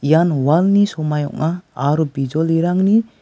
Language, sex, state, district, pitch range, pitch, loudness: Garo, male, Meghalaya, West Garo Hills, 150-180 Hz, 160 Hz, -17 LUFS